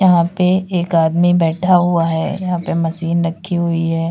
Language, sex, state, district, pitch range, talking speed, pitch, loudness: Hindi, female, Uttar Pradesh, Lalitpur, 165-180 Hz, 190 wpm, 170 Hz, -16 LUFS